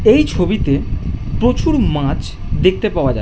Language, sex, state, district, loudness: Bengali, male, West Bengal, Jhargram, -16 LUFS